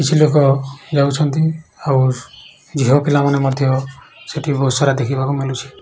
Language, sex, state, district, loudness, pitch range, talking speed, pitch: Odia, male, Odisha, Khordha, -16 LUFS, 135-150 Hz, 135 wpm, 140 Hz